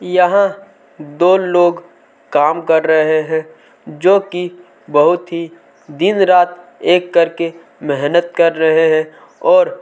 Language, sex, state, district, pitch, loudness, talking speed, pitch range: Hindi, male, Chhattisgarh, Kabirdham, 170 Hz, -14 LUFS, 140 wpm, 160-180 Hz